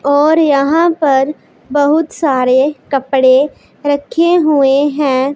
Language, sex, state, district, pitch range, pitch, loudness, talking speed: Hindi, female, Punjab, Pathankot, 270-305 Hz, 285 Hz, -12 LUFS, 100 wpm